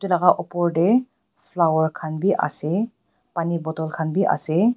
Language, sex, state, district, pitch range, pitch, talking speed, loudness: Nagamese, female, Nagaland, Dimapur, 160-195 Hz, 175 Hz, 125 wpm, -22 LUFS